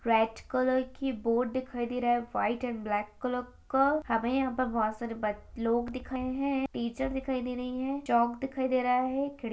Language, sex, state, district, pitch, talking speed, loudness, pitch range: Hindi, female, Bihar, Jahanabad, 250 Hz, 220 wpm, -31 LUFS, 235-260 Hz